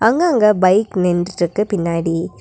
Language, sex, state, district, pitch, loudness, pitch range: Tamil, female, Tamil Nadu, Nilgiris, 190 Hz, -16 LUFS, 175-210 Hz